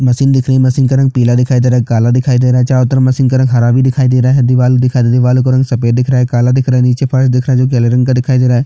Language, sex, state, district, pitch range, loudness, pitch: Hindi, male, Chhattisgarh, Jashpur, 125-130 Hz, -10 LUFS, 125 Hz